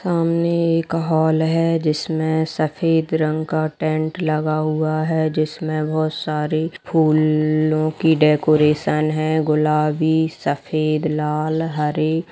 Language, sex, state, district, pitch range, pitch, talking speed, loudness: Hindi, female, Chhattisgarh, Kabirdham, 155-160 Hz, 155 Hz, 110 wpm, -19 LUFS